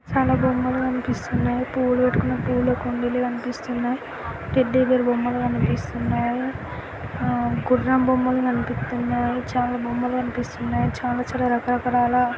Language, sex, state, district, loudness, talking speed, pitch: Telugu, female, Andhra Pradesh, Guntur, -23 LUFS, 105 wpm, 245 Hz